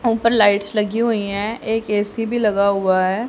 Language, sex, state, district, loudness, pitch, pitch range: Hindi, male, Haryana, Rohtak, -18 LUFS, 210 Hz, 200-225 Hz